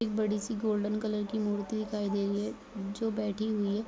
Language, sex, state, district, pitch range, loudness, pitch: Hindi, female, Bihar, Begusarai, 205-215 Hz, -33 LUFS, 210 Hz